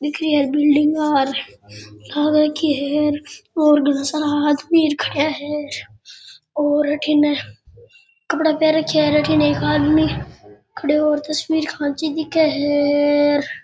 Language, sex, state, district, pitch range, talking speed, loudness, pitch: Rajasthani, male, Rajasthan, Churu, 290-305 Hz, 135 wpm, -18 LUFS, 295 Hz